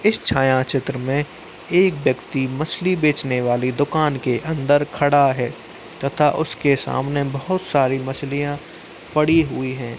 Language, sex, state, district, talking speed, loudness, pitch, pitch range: Hindi, male, Uttar Pradesh, Muzaffarnagar, 130 wpm, -20 LUFS, 145 Hz, 135-160 Hz